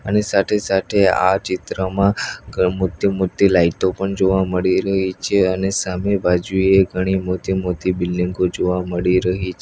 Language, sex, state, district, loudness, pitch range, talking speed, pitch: Gujarati, male, Gujarat, Valsad, -18 LUFS, 90-95 Hz, 135 wpm, 95 Hz